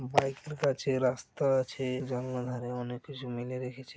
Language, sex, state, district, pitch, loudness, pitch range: Bengali, male, West Bengal, Malda, 130 Hz, -33 LUFS, 125-135 Hz